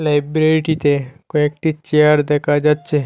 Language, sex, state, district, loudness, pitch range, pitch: Bengali, male, Assam, Hailakandi, -16 LUFS, 145-155 Hz, 150 Hz